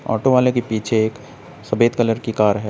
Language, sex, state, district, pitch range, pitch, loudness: Hindi, male, Uttar Pradesh, Saharanpur, 110-125 Hz, 115 Hz, -18 LUFS